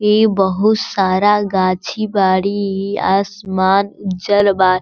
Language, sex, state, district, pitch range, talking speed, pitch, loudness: Hindi, female, Bihar, Sitamarhi, 190-205 Hz, 125 wpm, 195 Hz, -15 LUFS